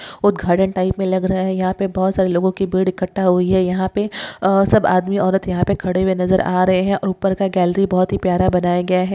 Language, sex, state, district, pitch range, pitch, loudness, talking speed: Hindi, female, Maharashtra, Nagpur, 185-195 Hz, 185 Hz, -17 LUFS, 245 wpm